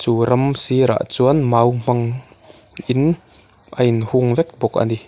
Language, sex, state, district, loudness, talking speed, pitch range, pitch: Mizo, male, Mizoram, Aizawl, -17 LUFS, 165 wpm, 115-130 Hz, 125 Hz